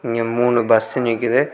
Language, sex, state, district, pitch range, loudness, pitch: Tamil, male, Tamil Nadu, Kanyakumari, 115-120 Hz, -18 LUFS, 115 Hz